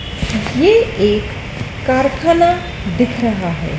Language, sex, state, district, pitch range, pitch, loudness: Hindi, female, Madhya Pradesh, Dhar, 210-340 Hz, 260 Hz, -15 LUFS